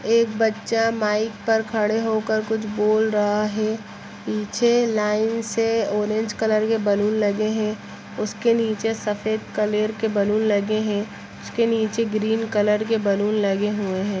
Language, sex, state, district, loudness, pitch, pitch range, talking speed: Hindi, female, Bihar, Saran, -22 LUFS, 215 Hz, 210-225 Hz, 160 wpm